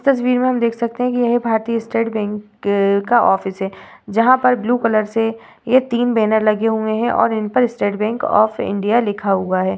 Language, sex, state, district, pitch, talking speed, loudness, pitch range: Hindi, female, Uttar Pradesh, Varanasi, 225 Hz, 215 wpm, -17 LUFS, 210-240 Hz